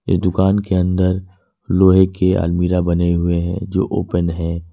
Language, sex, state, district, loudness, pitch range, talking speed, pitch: Hindi, male, Jharkhand, Ranchi, -17 LUFS, 85-95 Hz, 165 wpm, 90 Hz